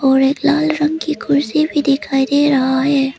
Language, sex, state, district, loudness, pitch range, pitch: Hindi, female, Arunachal Pradesh, Papum Pare, -15 LUFS, 270-300 Hz, 285 Hz